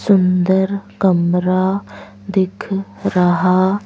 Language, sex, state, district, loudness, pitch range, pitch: Hindi, female, Madhya Pradesh, Bhopal, -16 LUFS, 180-195 Hz, 190 Hz